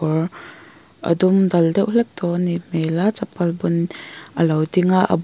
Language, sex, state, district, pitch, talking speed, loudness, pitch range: Mizo, female, Mizoram, Aizawl, 175 Hz, 185 wpm, -19 LUFS, 165-185 Hz